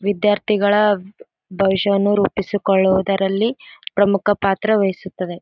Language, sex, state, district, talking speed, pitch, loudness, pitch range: Kannada, female, Karnataka, Gulbarga, 80 wpm, 200 Hz, -18 LUFS, 195-205 Hz